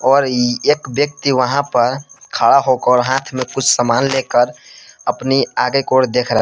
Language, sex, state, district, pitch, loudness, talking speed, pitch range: Hindi, male, Jharkhand, Palamu, 130 Hz, -15 LUFS, 175 wpm, 125-135 Hz